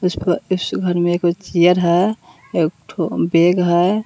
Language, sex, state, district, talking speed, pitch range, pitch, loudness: Hindi, female, Bihar, West Champaran, 180 wpm, 170-180 Hz, 175 Hz, -17 LUFS